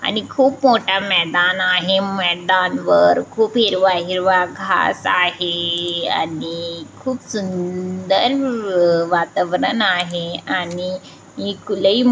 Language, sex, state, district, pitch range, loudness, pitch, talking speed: Marathi, female, Maharashtra, Chandrapur, 175-195 Hz, -17 LUFS, 185 Hz, 90 wpm